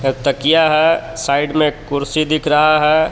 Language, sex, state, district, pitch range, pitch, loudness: Hindi, male, Jharkhand, Palamu, 140-155 Hz, 155 Hz, -15 LUFS